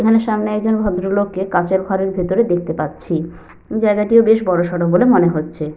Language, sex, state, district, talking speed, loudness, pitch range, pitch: Bengali, female, Jharkhand, Sahebganj, 155 wpm, -16 LUFS, 175-215 Hz, 190 Hz